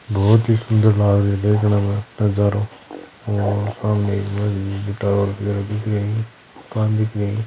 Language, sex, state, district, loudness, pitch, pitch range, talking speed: Hindi, male, Rajasthan, Churu, -19 LUFS, 105 Hz, 100-110 Hz, 135 wpm